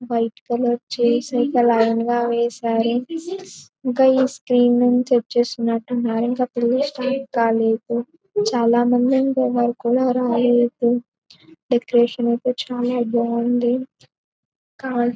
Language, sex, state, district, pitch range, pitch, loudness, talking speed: Telugu, female, Telangana, Karimnagar, 235-250 Hz, 240 Hz, -19 LUFS, 105 wpm